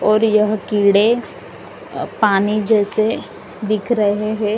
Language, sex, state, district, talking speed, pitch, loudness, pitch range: Hindi, female, Uttar Pradesh, Lalitpur, 105 wpm, 215 Hz, -17 LUFS, 205-215 Hz